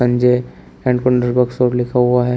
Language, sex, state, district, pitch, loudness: Hindi, male, Uttar Pradesh, Shamli, 125 Hz, -16 LUFS